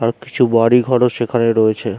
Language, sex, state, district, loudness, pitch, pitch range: Bengali, male, West Bengal, Jhargram, -15 LUFS, 115 Hz, 115-125 Hz